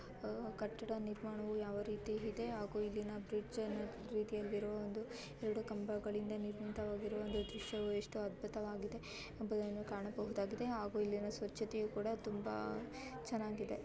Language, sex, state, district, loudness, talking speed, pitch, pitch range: Kannada, female, Karnataka, Bijapur, -43 LUFS, 110 wpm, 215 Hz, 210-220 Hz